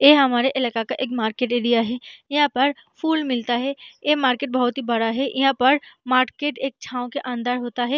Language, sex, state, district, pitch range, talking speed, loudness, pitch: Hindi, female, Bihar, Samastipur, 245-275 Hz, 220 wpm, -21 LUFS, 255 Hz